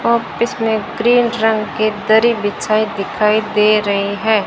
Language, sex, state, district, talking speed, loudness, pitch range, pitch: Hindi, female, Rajasthan, Bikaner, 145 wpm, -15 LUFS, 210-225 Hz, 215 Hz